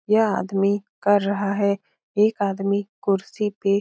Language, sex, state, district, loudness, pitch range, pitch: Hindi, female, Bihar, Lakhisarai, -22 LUFS, 200-205 Hz, 200 Hz